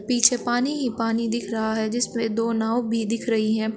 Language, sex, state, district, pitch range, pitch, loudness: Hindi, female, Uttar Pradesh, Shamli, 220-240 Hz, 230 Hz, -23 LUFS